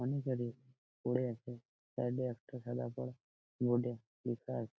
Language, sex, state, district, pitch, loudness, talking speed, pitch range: Bengali, male, West Bengal, Malda, 120 Hz, -40 LUFS, 150 wpm, 115-125 Hz